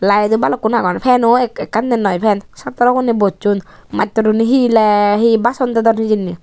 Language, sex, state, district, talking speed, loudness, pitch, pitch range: Chakma, female, Tripura, Unakoti, 170 wpm, -14 LUFS, 220 Hz, 205-235 Hz